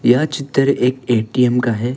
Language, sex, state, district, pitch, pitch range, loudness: Hindi, male, Arunachal Pradesh, Longding, 125 Hz, 120-135 Hz, -16 LUFS